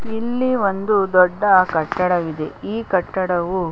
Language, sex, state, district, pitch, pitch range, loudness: Kannada, female, Karnataka, Chamarajanagar, 185 Hz, 180-210 Hz, -19 LUFS